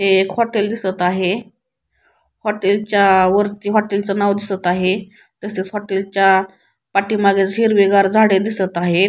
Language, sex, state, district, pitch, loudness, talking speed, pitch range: Marathi, female, Maharashtra, Pune, 200 Hz, -17 LUFS, 125 wpm, 190-210 Hz